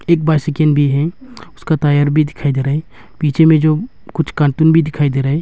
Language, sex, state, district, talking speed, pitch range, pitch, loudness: Hindi, male, Arunachal Pradesh, Longding, 230 wpm, 145-160 Hz, 155 Hz, -14 LUFS